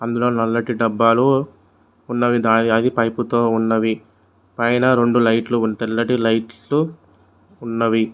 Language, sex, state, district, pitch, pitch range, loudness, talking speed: Telugu, male, Telangana, Mahabubabad, 115 Hz, 110-120 Hz, -18 LUFS, 120 wpm